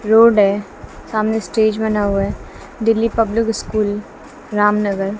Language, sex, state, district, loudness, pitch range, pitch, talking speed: Hindi, female, Bihar, West Champaran, -17 LUFS, 205-225 Hz, 215 Hz, 140 wpm